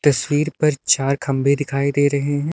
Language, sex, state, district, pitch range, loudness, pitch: Hindi, male, Uttar Pradesh, Lucknow, 140-145 Hz, -19 LUFS, 145 Hz